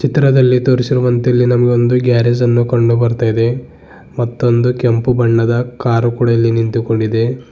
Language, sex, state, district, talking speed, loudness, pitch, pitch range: Kannada, male, Karnataka, Bidar, 130 wpm, -13 LUFS, 120 Hz, 115-125 Hz